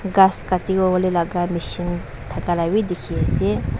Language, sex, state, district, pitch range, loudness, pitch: Nagamese, female, Nagaland, Dimapur, 175-190 Hz, -21 LUFS, 180 Hz